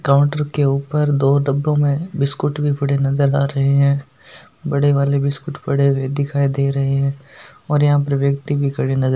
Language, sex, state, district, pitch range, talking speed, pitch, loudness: Hindi, male, Rajasthan, Nagaur, 140-145 Hz, 195 wpm, 140 Hz, -18 LUFS